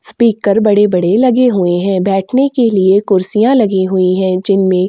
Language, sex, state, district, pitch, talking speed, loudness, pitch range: Hindi, female, Chhattisgarh, Sukma, 195 Hz, 160 wpm, -12 LUFS, 190-225 Hz